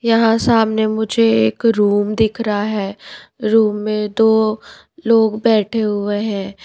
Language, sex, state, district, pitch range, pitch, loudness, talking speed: Hindi, female, Himachal Pradesh, Shimla, 210-225 Hz, 220 Hz, -16 LUFS, 135 wpm